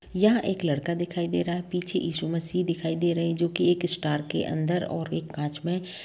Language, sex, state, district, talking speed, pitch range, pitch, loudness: Hindi, female, Jharkhand, Sahebganj, 240 wpm, 160-180 Hz, 170 Hz, -27 LUFS